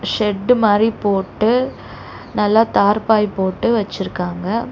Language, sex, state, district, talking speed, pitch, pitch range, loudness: Tamil, female, Tamil Nadu, Chennai, 90 wpm, 210 Hz, 195-225 Hz, -17 LUFS